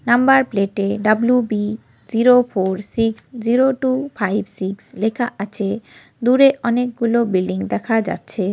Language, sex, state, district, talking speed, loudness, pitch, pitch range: Bengali, female, West Bengal, North 24 Parganas, 140 wpm, -18 LUFS, 225 Hz, 200-245 Hz